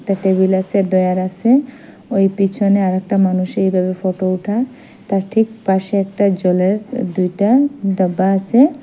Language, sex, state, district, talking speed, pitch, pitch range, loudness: Bengali, female, Assam, Hailakandi, 145 wpm, 195 Hz, 185-220 Hz, -16 LUFS